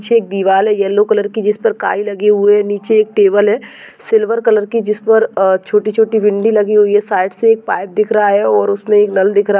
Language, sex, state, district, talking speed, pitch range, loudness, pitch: Hindi, female, Maharashtra, Nagpur, 245 wpm, 200-215 Hz, -13 LUFS, 210 Hz